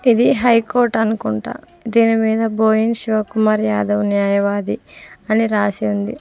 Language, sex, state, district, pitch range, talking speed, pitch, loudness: Telugu, female, Telangana, Mahabubabad, 205-230 Hz, 135 wpm, 220 Hz, -17 LUFS